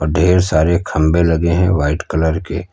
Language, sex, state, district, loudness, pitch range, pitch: Hindi, male, Uttar Pradesh, Lucknow, -15 LUFS, 80-90 Hz, 85 Hz